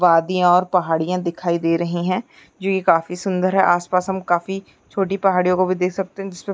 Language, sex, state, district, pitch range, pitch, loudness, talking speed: Hindi, female, Uttarakhand, Uttarkashi, 175-190 Hz, 180 Hz, -19 LUFS, 220 wpm